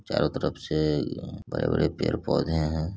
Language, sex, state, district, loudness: Hindi, male, Bihar, Saran, -27 LUFS